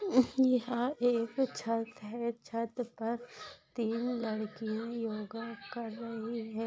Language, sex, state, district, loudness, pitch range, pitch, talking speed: Hindi, female, Maharashtra, Nagpur, -35 LUFS, 225-245 Hz, 230 Hz, 115 wpm